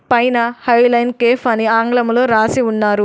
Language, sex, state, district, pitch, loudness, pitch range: Telugu, female, Telangana, Adilabad, 235 Hz, -14 LUFS, 225-245 Hz